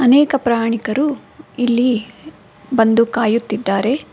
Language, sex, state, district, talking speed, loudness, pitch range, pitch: Kannada, female, Karnataka, Bangalore, 75 wpm, -17 LUFS, 225-265 Hz, 235 Hz